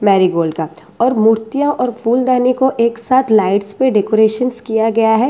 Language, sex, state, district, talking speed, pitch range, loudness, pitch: Hindi, female, Delhi, New Delhi, 170 wpm, 210-250 Hz, -14 LUFS, 225 Hz